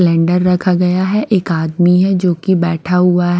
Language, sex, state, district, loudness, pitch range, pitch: Hindi, female, Himachal Pradesh, Shimla, -13 LUFS, 175-185 Hz, 180 Hz